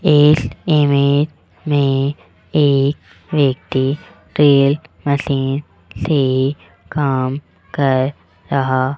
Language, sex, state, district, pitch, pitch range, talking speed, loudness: Hindi, male, Rajasthan, Jaipur, 140 Hz, 135-150 Hz, 80 wpm, -17 LUFS